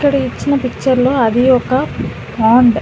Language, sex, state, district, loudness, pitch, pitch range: Telugu, female, Telangana, Hyderabad, -14 LUFS, 255 Hz, 240-270 Hz